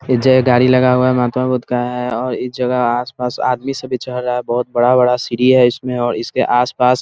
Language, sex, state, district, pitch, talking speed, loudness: Hindi, male, Bihar, Muzaffarpur, 125 Hz, 255 wpm, -15 LUFS